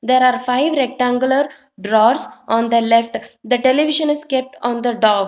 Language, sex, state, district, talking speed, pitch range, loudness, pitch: English, female, Telangana, Hyderabad, 180 wpm, 230-270 Hz, -16 LUFS, 250 Hz